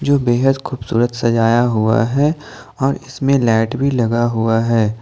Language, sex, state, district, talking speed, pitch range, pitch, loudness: Hindi, male, Jharkhand, Ranchi, 155 wpm, 115-135 Hz, 120 Hz, -16 LUFS